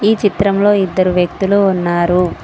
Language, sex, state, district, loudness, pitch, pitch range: Telugu, female, Telangana, Mahabubabad, -14 LUFS, 190 Hz, 180-200 Hz